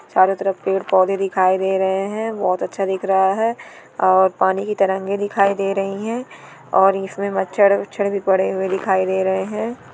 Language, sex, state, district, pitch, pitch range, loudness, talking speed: Hindi, female, West Bengal, Dakshin Dinajpur, 195 Hz, 190-200 Hz, -19 LUFS, 195 wpm